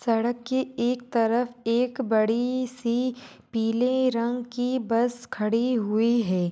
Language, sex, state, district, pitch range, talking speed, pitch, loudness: Hindi, female, Jharkhand, Sahebganj, 230-250 Hz, 130 wpm, 240 Hz, -25 LUFS